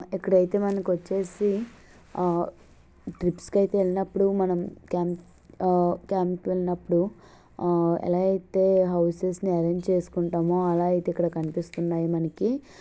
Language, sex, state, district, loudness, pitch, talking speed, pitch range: Telugu, female, Andhra Pradesh, Visakhapatnam, -26 LUFS, 180 Hz, 110 wpm, 175-190 Hz